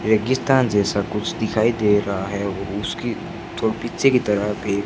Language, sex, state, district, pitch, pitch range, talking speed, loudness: Hindi, male, Rajasthan, Bikaner, 110 Hz, 100-125 Hz, 160 wpm, -21 LUFS